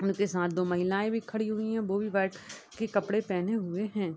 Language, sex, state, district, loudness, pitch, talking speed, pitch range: Hindi, female, Chhattisgarh, Bilaspur, -30 LUFS, 200 Hz, 230 wpm, 185-215 Hz